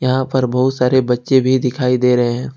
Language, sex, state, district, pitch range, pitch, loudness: Hindi, male, Jharkhand, Ranchi, 125-130 Hz, 125 Hz, -15 LUFS